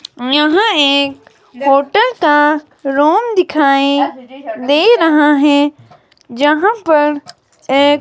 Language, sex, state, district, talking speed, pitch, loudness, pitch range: Hindi, female, Himachal Pradesh, Shimla, 90 wpm, 295 Hz, -12 LUFS, 275-310 Hz